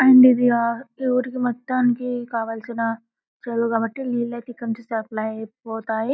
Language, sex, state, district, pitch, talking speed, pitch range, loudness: Telugu, female, Telangana, Karimnagar, 235 Hz, 105 wpm, 225-250 Hz, -22 LUFS